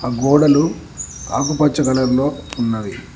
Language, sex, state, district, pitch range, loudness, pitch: Telugu, male, Telangana, Mahabubabad, 120-145 Hz, -17 LUFS, 130 Hz